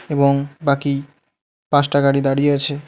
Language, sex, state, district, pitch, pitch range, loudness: Bengali, male, West Bengal, Alipurduar, 140 Hz, 140-145 Hz, -18 LUFS